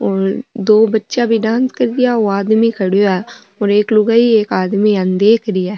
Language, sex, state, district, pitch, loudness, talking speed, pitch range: Marwari, female, Rajasthan, Nagaur, 215 Hz, -14 LUFS, 210 wpm, 200-230 Hz